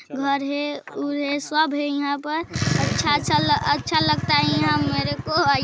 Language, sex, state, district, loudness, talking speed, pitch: Hindi, female, Chhattisgarh, Sarguja, -22 LUFS, 180 wpm, 285 Hz